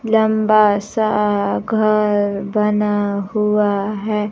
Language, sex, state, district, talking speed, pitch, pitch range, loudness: Hindi, female, Bihar, Kaimur, 85 wpm, 210 Hz, 205-215 Hz, -17 LUFS